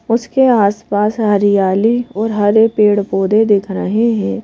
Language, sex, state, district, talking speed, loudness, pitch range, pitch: Hindi, female, Madhya Pradesh, Bhopal, 150 wpm, -13 LUFS, 205-225 Hz, 210 Hz